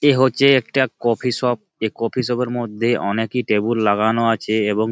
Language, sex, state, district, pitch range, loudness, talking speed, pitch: Bengali, male, West Bengal, Malda, 110-125 Hz, -19 LUFS, 195 wpm, 115 Hz